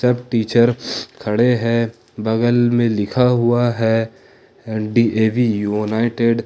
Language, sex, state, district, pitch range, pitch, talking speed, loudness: Hindi, male, Jharkhand, Ranchi, 110-120 Hz, 115 Hz, 120 wpm, -17 LUFS